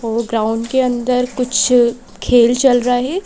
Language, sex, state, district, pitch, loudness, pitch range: Hindi, female, Madhya Pradesh, Bhopal, 245 Hz, -15 LUFS, 235-250 Hz